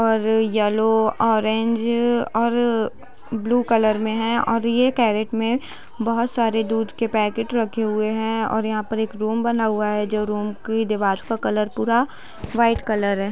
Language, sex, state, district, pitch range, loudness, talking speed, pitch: Hindi, female, Bihar, Jamui, 215-230 Hz, -21 LUFS, 170 wpm, 225 Hz